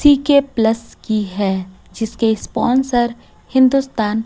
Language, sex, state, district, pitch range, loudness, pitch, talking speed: Hindi, female, Chhattisgarh, Raipur, 215-265 Hz, -17 LUFS, 230 Hz, 100 wpm